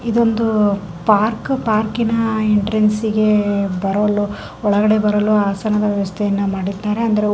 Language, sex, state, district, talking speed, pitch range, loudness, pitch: Kannada, female, Karnataka, Gulbarga, 75 wpm, 205-220 Hz, -17 LUFS, 210 Hz